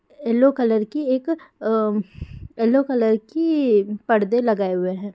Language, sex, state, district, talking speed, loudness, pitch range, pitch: Hindi, female, Bihar, Darbhanga, 140 wpm, -20 LUFS, 210-270 Hz, 225 Hz